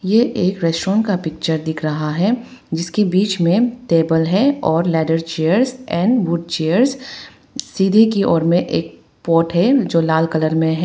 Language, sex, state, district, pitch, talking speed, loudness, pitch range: Hindi, female, Arunachal Pradesh, Papum Pare, 175 Hz, 170 wpm, -17 LUFS, 160-220 Hz